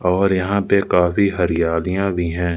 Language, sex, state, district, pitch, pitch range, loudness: Hindi, male, Madhya Pradesh, Umaria, 90 Hz, 85-100 Hz, -18 LUFS